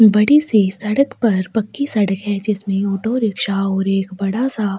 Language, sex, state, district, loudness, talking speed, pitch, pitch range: Hindi, female, Chhattisgarh, Sukma, -17 LUFS, 190 wpm, 210 Hz, 195-225 Hz